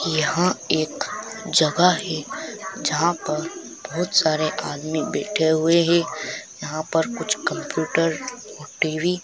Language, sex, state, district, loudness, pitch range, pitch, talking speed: Hindi, male, Andhra Pradesh, Chittoor, -22 LUFS, 155-180 Hz, 165 Hz, 115 wpm